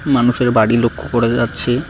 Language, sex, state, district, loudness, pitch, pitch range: Bengali, male, West Bengal, Cooch Behar, -15 LUFS, 120 Hz, 115-125 Hz